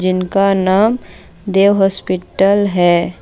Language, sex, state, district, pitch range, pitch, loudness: Hindi, female, Jharkhand, Deoghar, 185-200 Hz, 195 Hz, -14 LUFS